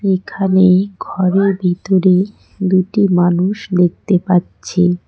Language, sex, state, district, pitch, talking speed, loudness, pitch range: Bengali, female, West Bengal, Cooch Behar, 185 Hz, 80 wpm, -15 LUFS, 180-195 Hz